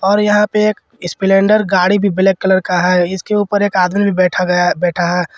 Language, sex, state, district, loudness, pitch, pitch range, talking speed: Hindi, male, Jharkhand, Ranchi, -13 LUFS, 190 Hz, 180-205 Hz, 210 wpm